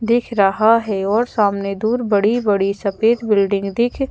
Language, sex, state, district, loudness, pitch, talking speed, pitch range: Hindi, female, Madhya Pradesh, Bhopal, -17 LUFS, 215 Hz, 145 wpm, 200-230 Hz